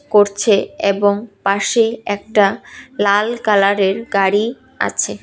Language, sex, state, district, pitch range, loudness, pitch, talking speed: Bengali, female, Tripura, West Tripura, 200-220 Hz, -16 LUFS, 205 Hz, 90 wpm